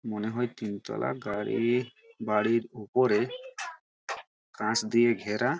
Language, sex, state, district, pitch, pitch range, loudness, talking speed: Bengali, male, West Bengal, Purulia, 115 Hz, 110-130 Hz, -29 LUFS, 95 wpm